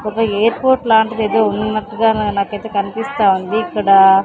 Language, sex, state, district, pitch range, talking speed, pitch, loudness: Telugu, female, Andhra Pradesh, Sri Satya Sai, 200-225 Hz, 125 wpm, 215 Hz, -15 LUFS